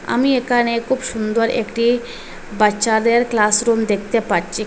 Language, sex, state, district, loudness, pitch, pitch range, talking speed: Bengali, female, Assam, Hailakandi, -17 LUFS, 230 Hz, 215-240 Hz, 130 wpm